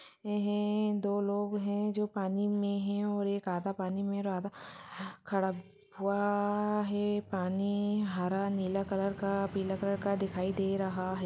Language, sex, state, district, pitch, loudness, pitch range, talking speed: Hindi, female, Chhattisgarh, Balrampur, 200 Hz, -33 LUFS, 195-205 Hz, 165 wpm